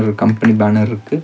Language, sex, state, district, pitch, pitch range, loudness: Tamil, male, Tamil Nadu, Nilgiris, 110 Hz, 105-115 Hz, -14 LUFS